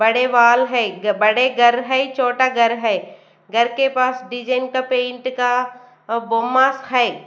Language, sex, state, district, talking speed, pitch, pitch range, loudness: Hindi, female, Bihar, Katihar, 155 wpm, 250 Hz, 235-255 Hz, -17 LUFS